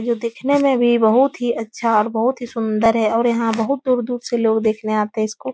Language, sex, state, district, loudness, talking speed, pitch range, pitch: Hindi, female, Uttar Pradesh, Etah, -18 LUFS, 260 wpm, 220-245 Hz, 230 Hz